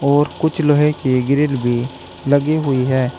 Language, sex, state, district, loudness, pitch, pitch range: Hindi, male, Uttar Pradesh, Saharanpur, -17 LUFS, 140 Hz, 130-150 Hz